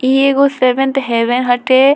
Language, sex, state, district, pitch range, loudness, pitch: Bhojpuri, female, Bihar, Muzaffarpur, 250-275 Hz, -13 LUFS, 260 Hz